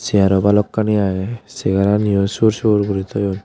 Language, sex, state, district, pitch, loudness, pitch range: Chakma, male, Tripura, West Tripura, 100 Hz, -17 LUFS, 100-105 Hz